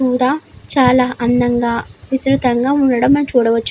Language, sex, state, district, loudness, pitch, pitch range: Telugu, female, Andhra Pradesh, Chittoor, -15 LUFS, 255 Hz, 245-270 Hz